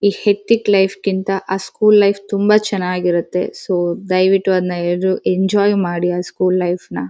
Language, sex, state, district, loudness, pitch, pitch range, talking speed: Kannada, female, Karnataka, Dharwad, -16 LUFS, 190 Hz, 180-200 Hz, 145 wpm